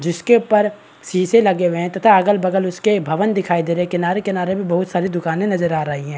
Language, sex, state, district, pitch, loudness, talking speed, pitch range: Hindi, male, Bihar, Araria, 185 Hz, -17 LUFS, 225 wpm, 175-200 Hz